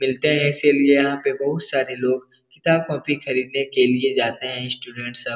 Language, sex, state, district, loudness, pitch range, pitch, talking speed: Hindi, male, Bihar, Darbhanga, -20 LUFS, 130-145 Hz, 135 Hz, 190 wpm